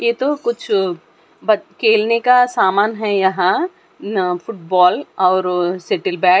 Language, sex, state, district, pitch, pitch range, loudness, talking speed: Hindi, female, Chandigarh, Chandigarh, 200 Hz, 185-235 Hz, -16 LUFS, 140 wpm